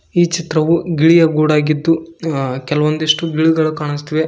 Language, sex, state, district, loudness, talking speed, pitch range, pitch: Kannada, male, Karnataka, Koppal, -15 LUFS, 100 wpm, 155-165 Hz, 155 Hz